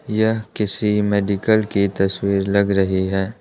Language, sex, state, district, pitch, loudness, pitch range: Hindi, male, Arunachal Pradesh, Lower Dibang Valley, 100 Hz, -19 LUFS, 95-105 Hz